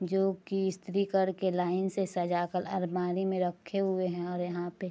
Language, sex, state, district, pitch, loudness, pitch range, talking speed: Hindi, female, Bihar, Darbhanga, 185 Hz, -32 LUFS, 180-190 Hz, 195 wpm